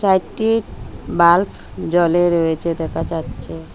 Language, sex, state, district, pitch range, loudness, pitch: Bengali, female, Assam, Hailakandi, 160-180 Hz, -18 LUFS, 170 Hz